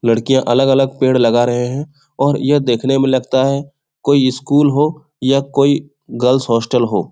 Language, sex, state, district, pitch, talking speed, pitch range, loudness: Hindi, male, Bihar, Jahanabad, 135 Hz, 170 wpm, 125-140 Hz, -15 LUFS